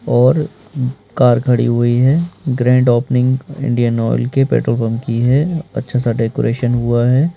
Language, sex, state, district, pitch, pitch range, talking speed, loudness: Hindi, male, Madhya Pradesh, Bhopal, 125 Hz, 120-135 Hz, 145 wpm, -15 LUFS